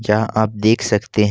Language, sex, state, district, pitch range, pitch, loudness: Hindi, male, Jharkhand, Ranchi, 105-110 Hz, 105 Hz, -17 LUFS